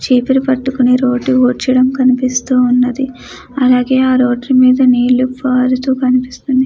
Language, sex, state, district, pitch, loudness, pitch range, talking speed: Telugu, female, Andhra Pradesh, Chittoor, 255 Hz, -12 LUFS, 250-260 Hz, 80 wpm